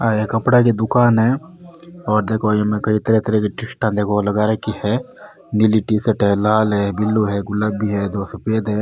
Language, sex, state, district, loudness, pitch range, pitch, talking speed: Rajasthani, male, Rajasthan, Nagaur, -18 LUFS, 105-110 Hz, 110 Hz, 195 wpm